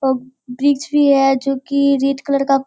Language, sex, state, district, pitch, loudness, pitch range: Hindi, female, Bihar, Kishanganj, 275 Hz, -16 LUFS, 265-280 Hz